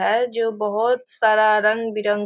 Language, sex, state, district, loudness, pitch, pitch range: Hindi, female, Bihar, Sitamarhi, -19 LUFS, 220 Hz, 215-230 Hz